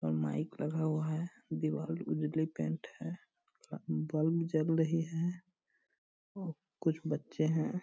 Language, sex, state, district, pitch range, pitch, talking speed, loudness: Hindi, male, Bihar, Purnia, 150-165 Hz, 160 Hz, 130 wpm, -36 LUFS